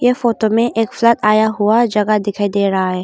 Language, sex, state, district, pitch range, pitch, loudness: Hindi, female, Arunachal Pradesh, Longding, 205-230 Hz, 215 Hz, -15 LUFS